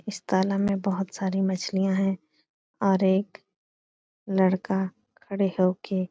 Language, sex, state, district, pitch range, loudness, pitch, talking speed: Hindi, female, Bihar, Supaul, 190-195 Hz, -26 LUFS, 190 Hz, 130 wpm